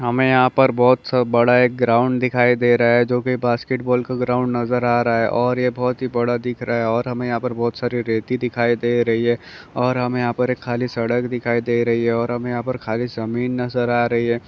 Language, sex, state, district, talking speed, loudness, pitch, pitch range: Hindi, male, Maharashtra, Nagpur, 255 wpm, -19 LUFS, 120 Hz, 120-125 Hz